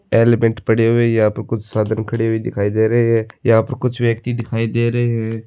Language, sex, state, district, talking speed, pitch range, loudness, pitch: Marwari, male, Rajasthan, Churu, 240 wpm, 110-120 Hz, -17 LUFS, 115 Hz